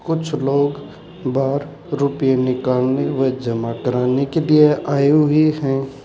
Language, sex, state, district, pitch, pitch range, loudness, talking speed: Hindi, male, Rajasthan, Jaipur, 140 Hz, 130-150 Hz, -18 LUFS, 130 wpm